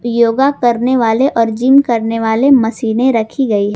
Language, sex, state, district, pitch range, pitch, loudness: Hindi, female, Jharkhand, Garhwa, 225-260 Hz, 235 Hz, -12 LUFS